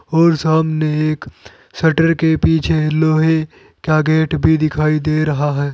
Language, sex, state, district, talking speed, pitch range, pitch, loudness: Hindi, male, Uttar Pradesh, Saharanpur, 145 wpm, 155-160 Hz, 155 Hz, -15 LUFS